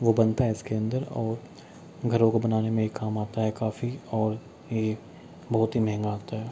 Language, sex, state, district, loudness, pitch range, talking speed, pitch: Hindi, male, Bihar, Kishanganj, -28 LUFS, 110-115 Hz, 200 wpm, 110 Hz